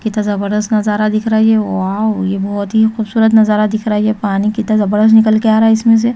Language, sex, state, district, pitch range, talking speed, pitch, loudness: Hindi, female, Chhattisgarh, Raipur, 210-220 Hz, 235 wpm, 215 Hz, -13 LUFS